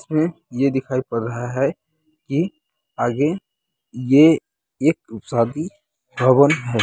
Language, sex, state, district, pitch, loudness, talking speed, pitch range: Hindi, male, Bihar, Muzaffarpur, 140 Hz, -20 LUFS, 115 wpm, 125-155 Hz